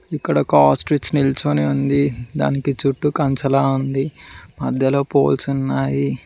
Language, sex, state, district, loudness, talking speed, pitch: Telugu, male, Telangana, Mahabubabad, -18 LUFS, 115 wpm, 135 Hz